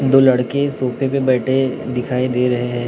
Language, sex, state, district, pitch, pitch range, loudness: Hindi, male, Maharashtra, Gondia, 130 Hz, 125-135 Hz, -17 LUFS